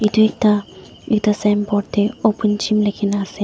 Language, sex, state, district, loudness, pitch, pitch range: Nagamese, female, Nagaland, Dimapur, -18 LUFS, 210 Hz, 205-215 Hz